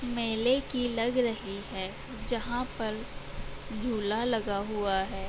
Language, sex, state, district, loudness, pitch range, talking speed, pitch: Hindi, female, Uttar Pradesh, Budaun, -31 LUFS, 200-240 Hz, 135 wpm, 225 Hz